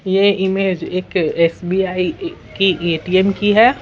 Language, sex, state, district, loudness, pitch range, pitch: Hindi, female, Bihar, Patna, -16 LUFS, 180-200 Hz, 190 Hz